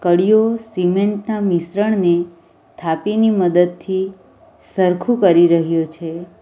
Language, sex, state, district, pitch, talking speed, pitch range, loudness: Gujarati, female, Gujarat, Valsad, 180 Hz, 105 wpm, 170-205 Hz, -16 LUFS